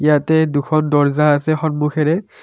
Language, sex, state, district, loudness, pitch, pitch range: Assamese, male, Assam, Kamrup Metropolitan, -16 LUFS, 150 Hz, 150-155 Hz